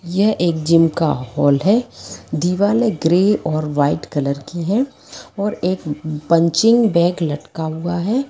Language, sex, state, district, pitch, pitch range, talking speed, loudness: Hindi, female, Jharkhand, Sahebganj, 170 Hz, 155-205 Hz, 145 wpm, -18 LUFS